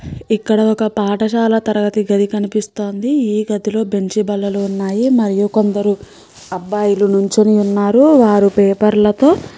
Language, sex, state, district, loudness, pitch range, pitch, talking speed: Telugu, female, Andhra Pradesh, Srikakulam, -14 LUFS, 205-220 Hz, 210 Hz, 130 wpm